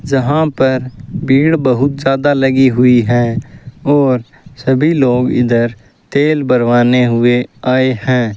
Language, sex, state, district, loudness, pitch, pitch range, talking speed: Hindi, male, Rajasthan, Bikaner, -13 LUFS, 130 Hz, 120-140 Hz, 120 wpm